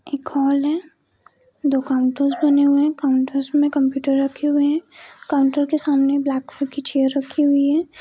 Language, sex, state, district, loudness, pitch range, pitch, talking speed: Hindi, female, Jharkhand, Sahebganj, -19 LUFS, 275-295 Hz, 285 Hz, 180 wpm